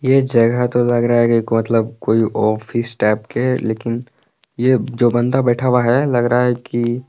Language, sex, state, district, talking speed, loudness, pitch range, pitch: Hindi, male, Jharkhand, Palamu, 195 wpm, -17 LUFS, 115-125 Hz, 120 Hz